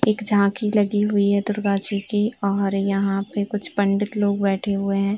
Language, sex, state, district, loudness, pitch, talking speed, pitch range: Hindi, female, Uttar Pradesh, Varanasi, -21 LUFS, 200 Hz, 195 wpm, 200-210 Hz